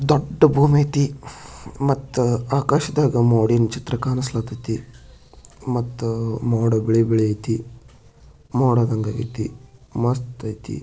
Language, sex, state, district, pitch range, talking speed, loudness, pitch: Kannada, male, Karnataka, Bijapur, 115-135 Hz, 95 wpm, -21 LUFS, 120 Hz